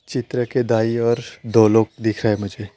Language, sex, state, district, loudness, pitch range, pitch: Hindi, male, West Bengal, Alipurduar, -19 LUFS, 110-120 Hz, 115 Hz